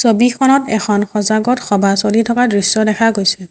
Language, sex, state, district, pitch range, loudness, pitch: Assamese, female, Assam, Sonitpur, 205-235 Hz, -13 LUFS, 215 Hz